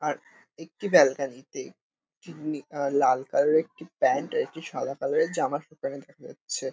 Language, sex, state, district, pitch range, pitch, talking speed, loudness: Bengali, male, West Bengal, Kolkata, 135-160 Hz, 145 Hz, 180 wpm, -26 LUFS